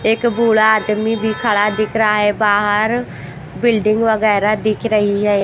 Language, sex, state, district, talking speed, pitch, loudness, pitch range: Hindi, female, Haryana, Jhajjar, 155 wpm, 215 Hz, -15 LUFS, 205-220 Hz